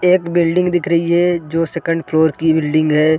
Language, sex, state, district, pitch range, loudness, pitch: Hindi, male, Bihar, Sitamarhi, 160-175 Hz, -15 LUFS, 165 Hz